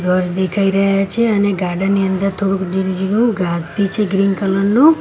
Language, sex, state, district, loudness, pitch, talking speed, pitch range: Gujarati, female, Gujarat, Gandhinagar, -16 LUFS, 195 Hz, 205 wpm, 190-200 Hz